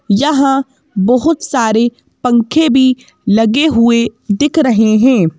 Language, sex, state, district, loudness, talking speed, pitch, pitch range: Hindi, female, Madhya Pradesh, Bhopal, -12 LUFS, 110 wpm, 245 Hz, 225-275 Hz